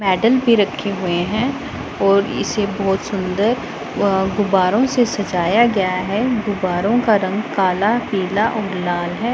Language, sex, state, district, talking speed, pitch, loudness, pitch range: Hindi, female, Punjab, Pathankot, 150 wpm, 200 Hz, -18 LUFS, 190-230 Hz